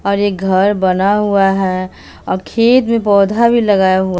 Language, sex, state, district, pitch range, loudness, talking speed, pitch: Hindi, female, Bihar, West Champaran, 185-205 Hz, -13 LUFS, 185 wpm, 195 Hz